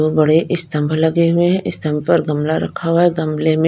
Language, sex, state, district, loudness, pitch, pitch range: Hindi, female, Punjab, Kapurthala, -16 LUFS, 160 Hz, 155-170 Hz